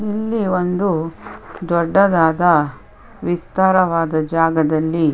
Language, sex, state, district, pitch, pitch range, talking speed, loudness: Kannada, female, Karnataka, Chamarajanagar, 170 Hz, 160-185 Hz, 70 wpm, -17 LUFS